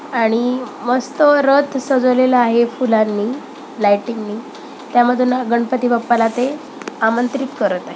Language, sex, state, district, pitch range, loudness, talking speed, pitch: Marathi, female, Maharashtra, Pune, 235-270 Hz, -16 LUFS, 115 wpm, 250 Hz